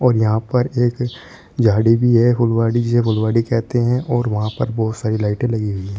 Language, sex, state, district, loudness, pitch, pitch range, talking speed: Hindi, male, Uttar Pradesh, Shamli, -17 LUFS, 115 Hz, 110-120 Hz, 190 wpm